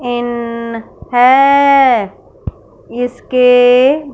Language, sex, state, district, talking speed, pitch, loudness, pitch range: Hindi, female, Punjab, Fazilka, 45 wpm, 245 Hz, -11 LUFS, 240-265 Hz